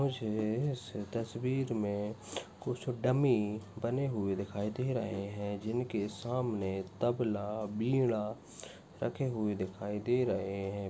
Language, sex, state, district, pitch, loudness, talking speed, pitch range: Hindi, male, Chhattisgarh, Bastar, 110 Hz, -35 LUFS, 120 wpm, 100-125 Hz